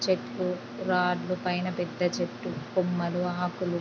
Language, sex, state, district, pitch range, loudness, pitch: Telugu, female, Andhra Pradesh, Krishna, 180-185 Hz, -29 LUFS, 180 Hz